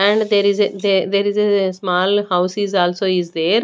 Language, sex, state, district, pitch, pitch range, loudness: English, female, Haryana, Rohtak, 200 Hz, 180-205 Hz, -17 LUFS